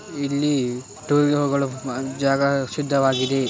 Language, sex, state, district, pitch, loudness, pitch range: Kannada, male, Karnataka, Dharwad, 140 Hz, -22 LUFS, 130-145 Hz